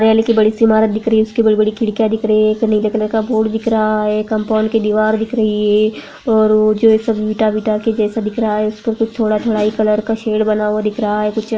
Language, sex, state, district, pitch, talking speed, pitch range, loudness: Hindi, female, Rajasthan, Nagaur, 215 Hz, 195 wpm, 215-220 Hz, -15 LUFS